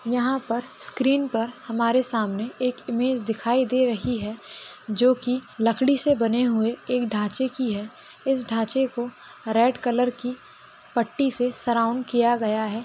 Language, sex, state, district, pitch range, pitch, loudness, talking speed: Hindi, female, Uttar Pradesh, Varanasi, 230-255 Hz, 245 Hz, -24 LUFS, 155 wpm